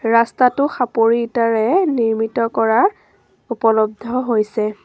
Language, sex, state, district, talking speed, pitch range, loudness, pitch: Assamese, female, Assam, Sonitpur, 85 wpm, 225-250 Hz, -17 LUFS, 230 Hz